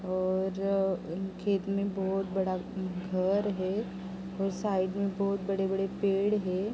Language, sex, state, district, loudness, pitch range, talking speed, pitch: Hindi, female, Uttar Pradesh, Jalaun, -31 LUFS, 185-200 Hz, 135 wpm, 195 Hz